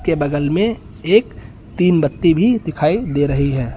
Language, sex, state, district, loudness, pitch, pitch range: Hindi, male, Uttar Pradesh, Lucknow, -16 LUFS, 145 Hz, 140-175 Hz